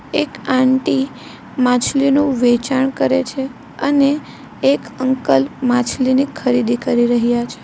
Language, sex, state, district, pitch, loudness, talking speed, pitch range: Gujarati, female, Gujarat, Valsad, 260 Hz, -16 LUFS, 120 wpm, 245-275 Hz